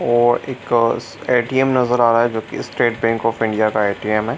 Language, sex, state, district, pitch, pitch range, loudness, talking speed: Hindi, male, Bihar, Supaul, 115 Hz, 110-120 Hz, -18 LUFS, 205 wpm